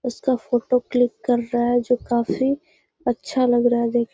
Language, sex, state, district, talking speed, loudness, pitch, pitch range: Hindi, female, Bihar, Gaya, 205 wpm, -21 LUFS, 245 Hz, 240-255 Hz